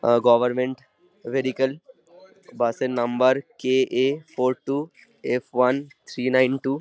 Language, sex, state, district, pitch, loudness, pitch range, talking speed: Bengali, male, West Bengal, Dakshin Dinajpur, 130 Hz, -23 LUFS, 125-140 Hz, 130 wpm